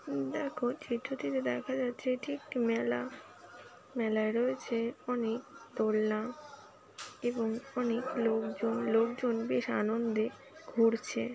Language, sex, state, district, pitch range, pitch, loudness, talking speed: Bengali, female, West Bengal, Paschim Medinipur, 220-250 Hz, 230 Hz, -33 LUFS, 95 wpm